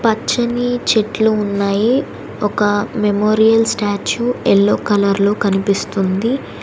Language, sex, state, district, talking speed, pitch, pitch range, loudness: Telugu, female, Telangana, Hyderabad, 80 wpm, 210 Hz, 200-225 Hz, -16 LUFS